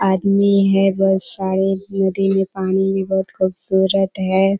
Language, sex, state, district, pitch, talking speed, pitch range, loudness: Hindi, female, Bihar, Kishanganj, 195 Hz, 130 wpm, 190-195 Hz, -17 LUFS